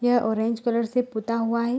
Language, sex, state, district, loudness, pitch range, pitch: Hindi, female, Bihar, Saharsa, -25 LUFS, 230-245 Hz, 235 Hz